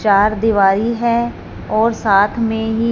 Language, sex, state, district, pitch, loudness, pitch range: Hindi, female, Punjab, Fazilka, 220 Hz, -15 LUFS, 205-230 Hz